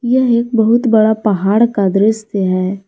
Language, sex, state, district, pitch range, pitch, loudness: Hindi, female, Jharkhand, Garhwa, 195-235 Hz, 220 Hz, -13 LUFS